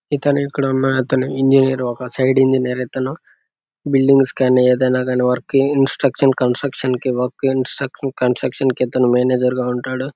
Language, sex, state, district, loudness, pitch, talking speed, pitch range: Telugu, male, Andhra Pradesh, Guntur, -17 LUFS, 130 Hz, 140 wpm, 125-135 Hz